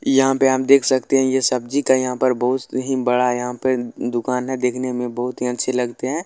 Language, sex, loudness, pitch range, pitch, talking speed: Maithili, male, -19 LUFS, 125-130 Hz, 130 Hz, 240 wpm